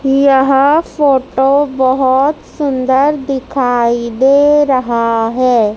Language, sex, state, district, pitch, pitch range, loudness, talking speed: Hindi, female, Madhya Pradesh, Dhar, 265 Hz, 255-280 Hz, -12 LUFS, 85 wpm